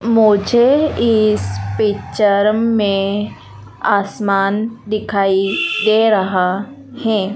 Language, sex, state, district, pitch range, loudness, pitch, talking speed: Hindi, female, Madhya Pradesh, Dhar, 195-225 Hz, -15 LUFS, 210 Hz, 75 wpm